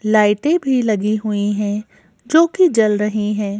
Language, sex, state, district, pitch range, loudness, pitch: Hindi, female, Madhya Pradesh, Bhopal, 210-255 Hz, -17 LUFS, 215 Hz